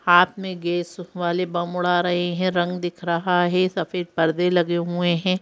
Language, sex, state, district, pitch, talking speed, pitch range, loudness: Hindi, female, Madhya Pradesh, Bhopal, 175 Hz, 190 wpm, 175-180 Hz, -22 LUFS